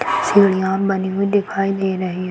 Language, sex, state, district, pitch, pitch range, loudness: Hindi, female, Uttar Pradesh, Varanasi, 195 Hz, 190-195 Hz, -18 LUFS